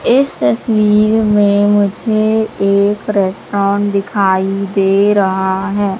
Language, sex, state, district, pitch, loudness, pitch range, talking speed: Hindi, female, Madhya Pradesh, Katni, 200 Hz, -13 LUFS, 195-210 Hz, 100 wpm